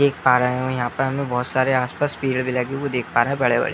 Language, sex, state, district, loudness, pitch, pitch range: Hindi, male, Bihar, Muzaffarpur, -21 LUFS, 130 Hz, 125-135 Hz